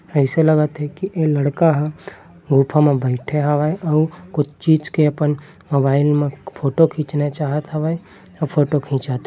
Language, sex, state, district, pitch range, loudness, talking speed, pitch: Chhattisgarhi, male, Chhattisgarh, Bilaspur, 145-155 Hz, -18 LUFS, 170 wpm, 150 Hz